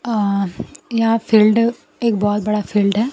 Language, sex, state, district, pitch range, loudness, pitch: Hindi, female, Bihar, Kaimur, 205-230 Hz, -17 LUFS, 215 Hz